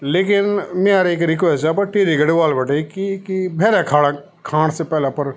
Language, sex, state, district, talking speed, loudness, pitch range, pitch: Garhwali, male, Uttarakhand, Tehri Garhwal, 210 wpm, -17 LUFS, 150-195 Hz, 170 Hz